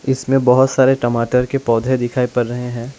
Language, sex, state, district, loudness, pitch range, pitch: Hindi, male, Assam, Sonitpur, -16 LUFS, 120-130 Hz, 125 Hz